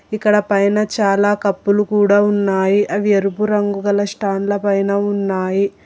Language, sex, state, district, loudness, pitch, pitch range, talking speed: Telugu, female, Telangana, Hyderabad, -16 LUFS, 200 Hz, 200-205 Hz, 145 wpm